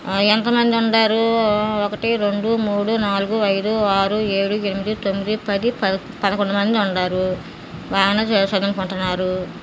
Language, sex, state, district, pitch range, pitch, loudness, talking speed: Telugu, male, Andhra Pradesh, Guntur, 195-215 Hz, 205 Hz, -19 LUFS, 125 wpm